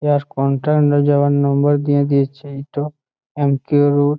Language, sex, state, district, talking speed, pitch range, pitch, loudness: Bengali, male, West Bengal, Malda, 130 wpm, 140-145 Hz, 145 Hz, -16 LUFS